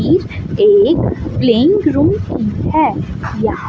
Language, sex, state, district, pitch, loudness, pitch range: Hindi, female, Chandigarh, Chandigarh, 345 Hz, -14 LUFS, 300-410 Hz